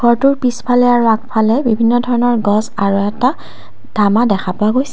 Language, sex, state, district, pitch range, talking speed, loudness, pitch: Assamese, female, Assam, Kamrup Metropolitan, 210-245 Hz, 160 wpm, -14 LUFS, 235 Hz